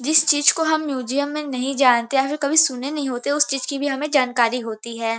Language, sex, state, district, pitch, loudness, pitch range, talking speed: Hindi, female, Uttar Pradesh, Varanasi, 275 Hz, -20 LUFS, 250-290 Hz, 255 wpm